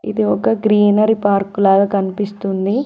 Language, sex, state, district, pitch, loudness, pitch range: Telugu, female, Telangana, Mahabubabad, 200 Hz, -15 LUFS, 195-210 Hz